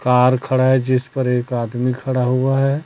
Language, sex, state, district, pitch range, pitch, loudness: Hindi, female, Chhattisgarh, Raipur, 125-130 Hz, 130 Hz, -18 LUFS